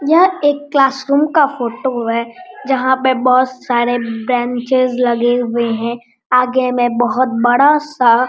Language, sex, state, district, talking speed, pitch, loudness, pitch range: Hindi, male, Bihar, Araria, 145 wpm, 250 Hz, -15 LUFS, 240-270 Hz